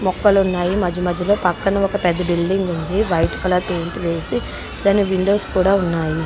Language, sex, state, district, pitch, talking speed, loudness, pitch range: Telugu, female, Andhra Pradesh, Guntur, 185 Hz, 165 wpm, -18 LUFS, 175-195 Hz